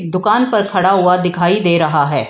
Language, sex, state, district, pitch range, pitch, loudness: Hindi, female, Bihar, Gaya, 175-200 Hz, 180 Hz, -13 LUFS